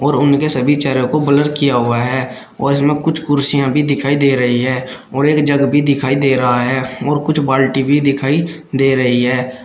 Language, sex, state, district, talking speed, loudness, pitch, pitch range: Hindi, male, Uttar Pradesh, Shamli, 205 wpm, -14 LUFS, 140 Hz, 130-145 Hz